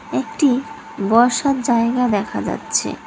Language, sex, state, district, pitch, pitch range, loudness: Bengali, female, West Bengal, Cooch Behar, 245 Hz, 230-280 Hz, -18 LUFS